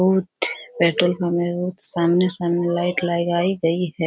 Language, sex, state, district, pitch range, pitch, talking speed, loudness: Hindi, female, Bihar, Supaul, 170-180 Hz, 175 Hz, 145 wpm, -21 LUFS